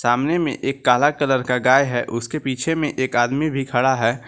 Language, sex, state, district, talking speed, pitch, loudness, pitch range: Hindi, male, Jharkhand, Garhwa, 225 wpm, 130 Hz, -19 LUFS, 120-145 Hz